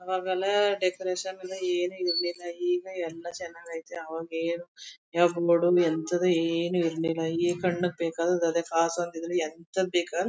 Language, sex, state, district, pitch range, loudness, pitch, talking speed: Kannada, female, Karnataka, Mysore, 165-180 Hz, -28 LUFS, 175 Hz, 120 wpm